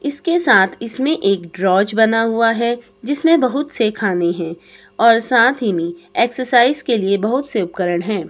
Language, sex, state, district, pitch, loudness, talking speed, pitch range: Hindi, male, Himachal Pradesh, Shimla, 225 Hz, -16 LUFS, 175 wpm, 190-255 Hz